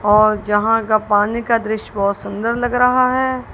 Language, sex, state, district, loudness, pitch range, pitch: Hindi, female, Punjab, Kapurthala, -17 LUFS, 210-240 Hz, 220 Hz